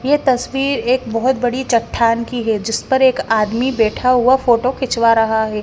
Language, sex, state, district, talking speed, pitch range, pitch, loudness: Hindi, female, Haryana, Rohtak, 190 wpm, 225-260 Hz, 245 Hz, -16 LUFS